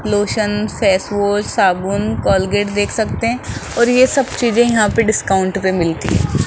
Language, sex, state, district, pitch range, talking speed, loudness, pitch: Hindi, male, Rajasthan, Jaipur, 195-230 Hz, 165 wpm, -16 LUFS, 205 Hz